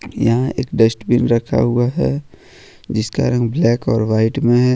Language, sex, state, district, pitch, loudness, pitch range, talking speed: Hindi, male, Jharkhand, Ranchi, 120 Hz, -17 LUFS, 115-125 Hz, 165 wpm